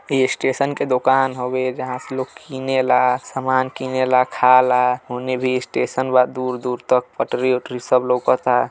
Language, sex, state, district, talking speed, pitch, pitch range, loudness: Bhojpuri, male, Uttar Pradesh, Deoria, 150 wpm, 130 Hz, 125-130 Hz, -19 LUFS